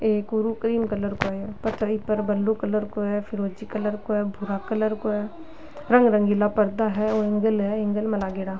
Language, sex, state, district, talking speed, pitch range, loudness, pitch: Rajasthani, female, Rajasthan, Nagaur, 210 wpm, 205-220 Hz, -24 LUFS, 210 Hz